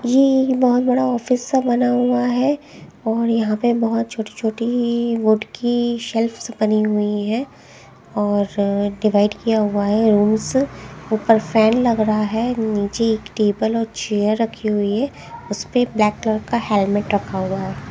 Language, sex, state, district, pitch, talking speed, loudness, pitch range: Hindi, female, Haryana, Jhajjar, 225 Hz, 155 wpm, -19 LUFS, 210-240 Hz